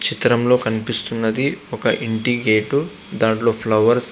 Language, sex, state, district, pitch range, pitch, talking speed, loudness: Telugu, male, Andhra Pradesh, Visakhapatnam, 110-120 Hz, 115 Hz, 130 wpm, -18 LUFS